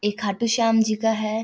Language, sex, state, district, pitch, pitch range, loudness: Maithili, female, Bihar, Samastipur, 220 Hz, 215-225 Hz, -22 LUFS